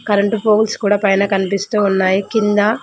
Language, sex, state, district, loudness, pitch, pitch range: Telugu, female, Telangana, Mahabubabad, -15 LUFS, 205 Hz, 195-215 Hz